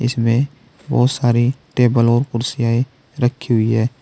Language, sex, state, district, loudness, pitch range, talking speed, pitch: Hindi, male, Uttar Pradesh, Saharanpur, -17 LUFS, 115-130 Hz, 135 wpm, 120 Hz